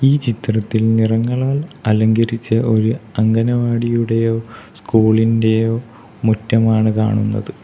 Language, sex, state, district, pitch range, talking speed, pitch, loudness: Malayalam, male, Kerala, Kollam, 110-115 Hz, 70 wpm, 115 Hz, -16 LUFS